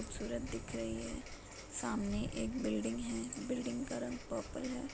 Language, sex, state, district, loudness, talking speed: Hindi, female, Uttar Pradesh, Etah, -40 LUFS, 160 wpm